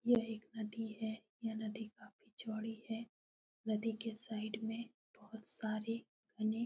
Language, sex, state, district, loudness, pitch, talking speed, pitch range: Hindi, female, Uttar Pradesh, Etah, -43 LUFS, 220 Hz, 155 wpm, 215-225 Hz